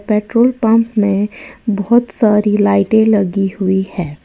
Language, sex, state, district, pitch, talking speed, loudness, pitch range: Hindi, female, Uttar Pradesh, Lalitpur, 210 Hz, 125 wpm, -14 LUFS, 195-220 Hz